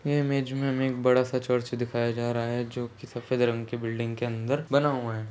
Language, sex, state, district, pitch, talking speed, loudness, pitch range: Hindi, male, Chhattisgarh, Balrampur, 120 Hz, 250 wpm, -28 LUFS, 120-130 Hz